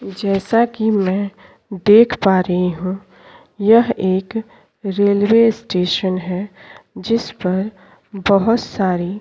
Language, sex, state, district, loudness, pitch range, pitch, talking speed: Hindi, female, Uttar Pradesh, Jyotiba Phule Nagar, -17 LUFS, 185-220 Hz, 200 Hz, 110 wpm